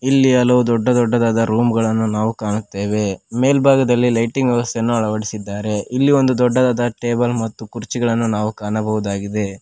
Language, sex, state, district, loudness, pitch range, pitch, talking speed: Kannada, male, Karnataka, Koppal, -17 LUFS, 110-125 Hz, 115 Hz, 125 wpm